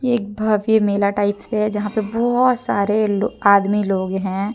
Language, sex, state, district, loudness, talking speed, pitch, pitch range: Hindi, female, Jharkhand, Deoghar, -18 LUFS, 170 wpm, 210 Hz, 200-220 Hz